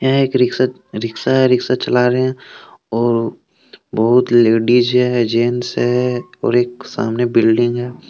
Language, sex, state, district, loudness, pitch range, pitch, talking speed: Hindi, male, Jharkhand, Deoghar, -16 LUFS, 115-125 Hz, 120 Hz, 150 wpm